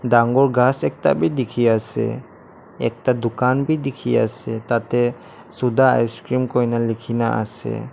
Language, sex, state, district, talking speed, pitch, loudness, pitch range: Nagamese, male, Nagaland, Dimapur, 145 wpm, 120 Hz, -20 LUFS, 115-130 Hz